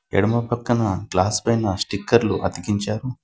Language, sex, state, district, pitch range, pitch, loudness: Telugu, male, Telangana, Komaram Bheem, 95-115 Hz, 105 Hz, -21 LUFS